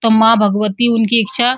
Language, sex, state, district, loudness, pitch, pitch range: Hindi, female, Uttar Pradesh, Muzaffarnagar, -13 LUFS, 225 Hz, 215-235 Hz